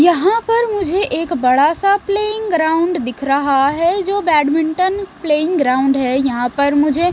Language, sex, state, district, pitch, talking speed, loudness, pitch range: Hindi, female, Bihar, West Champaran, 330 Hz, 160 wpm, -15 LUFS, 280-390 Hz